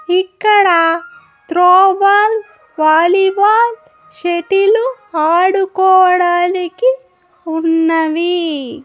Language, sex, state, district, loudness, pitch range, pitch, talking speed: Telugu, female, Andhra Pradesh, Annamaya, -12 LUFS, 330-400 Hz, 360 Hz, 40 wpm